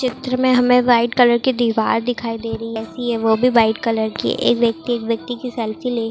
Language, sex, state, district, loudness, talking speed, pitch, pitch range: Hindi, female, Maharashtra, Dhule, -18 LUFS, 275 wpm, 235 Hz, 225-250 Hz